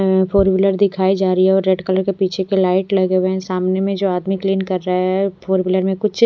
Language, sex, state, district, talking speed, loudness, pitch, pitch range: Hindi, female, Odisha, Malkangiri, 285 wpm, -17 LUFS, 190 Hz, 185-195 Hz